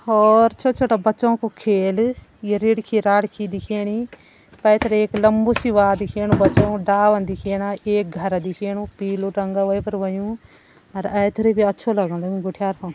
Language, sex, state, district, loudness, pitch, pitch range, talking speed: Garhwali, female, Uttarakhand, Tehri Garhwal, -20 LUFS, 205 Hz, 195-220 Hz, 135 wpm